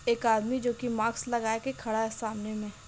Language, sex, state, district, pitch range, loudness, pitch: Hindi, female, Bihar, Muzaffarpur, 220-240 Hz, -30 LUFS, 225 Hz